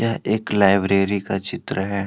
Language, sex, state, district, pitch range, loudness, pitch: Hindi, male, Jharkhand, Deoghar, 100-105 Hz, -20 LUFS, 100 Hz